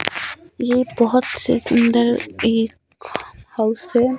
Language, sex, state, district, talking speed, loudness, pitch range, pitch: Hindi, female, Himachal Pradesh, Shimla, 100 wpm, -19 LUFS, 235-255 Hz, 240 Hz